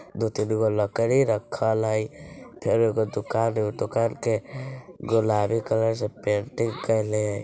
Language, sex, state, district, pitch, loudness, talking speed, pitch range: Bajjika, female, Bihar, Vaishali, 110 Hz, -25 LUFS, 135 wpm, 105-115 Hz